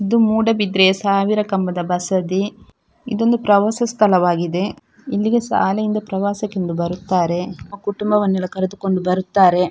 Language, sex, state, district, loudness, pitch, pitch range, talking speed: Kannada, female, Karnataka, Dakshina Kannada, -18 LUFS, 195 Hz, 185-210 Hz, 115 wpm